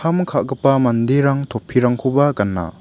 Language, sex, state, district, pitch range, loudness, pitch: Garo, male, Meghalaya, West Garo Hills, 115-140 Hz, -17 LUFS, 135 Hz